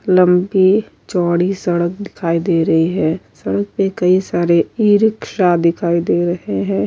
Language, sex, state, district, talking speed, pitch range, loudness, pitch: Urdu, female, Uttar Pradesh, Budaun, 140 wpm, 170-195 Hz, -16 LUFS, 180 Hz